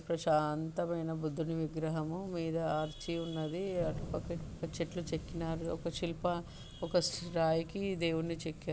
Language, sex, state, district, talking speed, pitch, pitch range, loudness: Telugu, female, Telangana, Karimnagar, 105 wpm, 165 Hz, 160-170 Hz, -36 LUFS